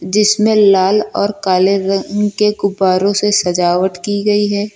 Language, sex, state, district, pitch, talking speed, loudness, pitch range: Hindi, male, Uttar Pradesh, Lucknow, 200 Hz, 150 wpm, -13 LUFS, 190-210 Hz